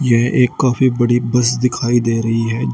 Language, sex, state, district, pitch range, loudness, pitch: Hindi, male, Uttar Pradesh, Shamli, 115-125 Hz, -15 LUFS, 120 Hz